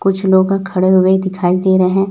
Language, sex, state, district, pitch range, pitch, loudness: Hindi, male, Chhattisgarh, Raipur, 185-195 Hz, 190 Hz, -13 LUFS